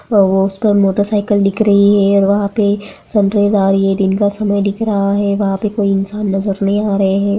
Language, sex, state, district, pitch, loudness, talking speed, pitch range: Hindi, female, Bihar, Jamui, 200 Hz, -14 LUFS, 205 wpm, 195-205 Hz